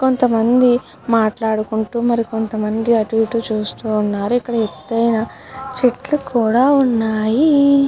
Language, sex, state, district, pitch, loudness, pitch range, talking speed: Telugu, female, Andhra Pradesh, Guntur, 230 Hz, -17 LUFS, 220-250 Hz, 105 wpm